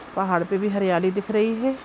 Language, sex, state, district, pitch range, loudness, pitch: Hindi, female, Chhattisgarh, Sukma, 185-220 Hz, -23 LUFS, 200 Hz